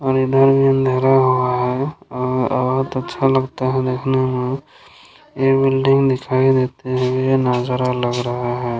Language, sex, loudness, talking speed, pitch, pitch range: Maithili, male, -17 LUFS, 155 wpm, 130 Hz, 125-135 Hz